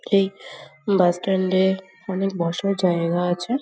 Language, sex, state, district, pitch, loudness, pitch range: Bengali, female, West Bengal, Jhargram, 190 Hz, -22 LUFS, 175-195 Hz